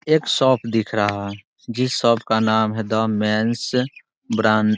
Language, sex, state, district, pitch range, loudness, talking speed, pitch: Hindi, male, Bihar, Muzaffarpur, 110-120 Hz, -20 LUFS, 150 wpm, 110 Hz